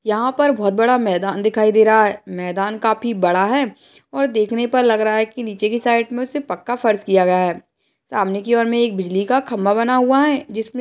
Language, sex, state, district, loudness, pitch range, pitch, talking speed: Hindi, female, Uttarakhand, Uttarkashi, -17 LUFS, 200-245 Hz, 220 Hz, 240 wpm